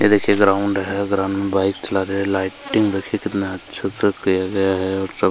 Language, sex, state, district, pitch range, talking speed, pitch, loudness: Hindi, male, Chhattisgarh, Kabirdham, 95-100 Hz, 225 wpm, 95 Hz, -20 LUFS